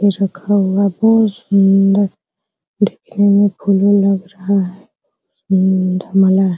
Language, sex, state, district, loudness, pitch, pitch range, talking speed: Hindi, female, Bihar, Araria, -14 LUFS, 195 Hz, 190-205 Hz, 110 wpm